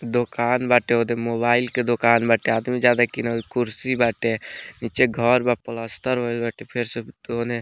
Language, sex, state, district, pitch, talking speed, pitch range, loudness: Bhojpuri, male, Bihar, Muzaffarpur, 120 Hz, 180 wpm, 115-120 Hz, -21 LUFS